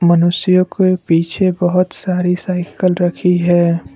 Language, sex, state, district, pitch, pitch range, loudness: Hindi, male, Assam, Kamrup Metropolitan, 180 Hz, 175-185 Hz, -15 LUFS